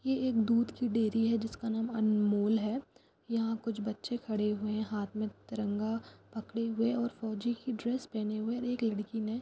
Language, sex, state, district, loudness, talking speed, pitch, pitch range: Hindi, female, Rajasthan, Churu, -33 LUFS, 195 wpm, 225 Hz, 215-235 Hz